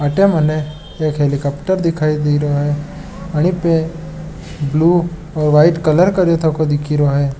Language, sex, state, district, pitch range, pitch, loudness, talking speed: Marwari, male, Rajasthan, Nagaur, 150-165 Hz, 155 Hz, -15 LUFS, 140 wpm